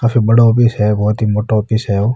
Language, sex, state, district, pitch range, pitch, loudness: Marwari, male, Rajasthan, Nagaur, 105-115 Hz, 110 Hz, -13 LUFS